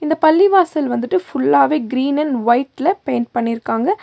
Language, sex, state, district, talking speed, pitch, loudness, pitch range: Tamil, female, Tamil Nadu, Nilgiris, 120 wpm, 290 Hz, -16 LUFS, 245-340 Hz